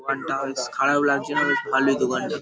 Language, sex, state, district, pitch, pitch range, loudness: Bengali, male, West Bengal, Paschim Medinipur, 135 Hz, 135-145 Hz, -22 LUFS